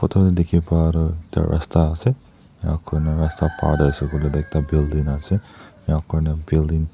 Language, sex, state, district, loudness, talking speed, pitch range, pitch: Nagamese, male, Nagaland, Dimapur, -21 LUFS, 175 wpm, 75-85 Hz, 80 Hz